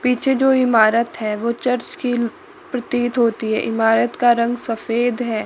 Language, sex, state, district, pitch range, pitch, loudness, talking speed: Hindi, female, Chandigarh, Chandigarh, 225-250 Hz, 240 Hz, -18 LUFS, 175 wpm